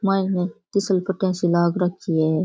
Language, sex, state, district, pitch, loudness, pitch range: Rajasthani, female, Rajasthan, Churu, 185 Hz, -22 LUFS, 170-195 Hz